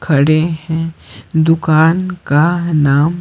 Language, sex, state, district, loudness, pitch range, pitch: Hindi, male, Bihar, Patna, -14 LUFS, 155-165 Hz, 160 Hz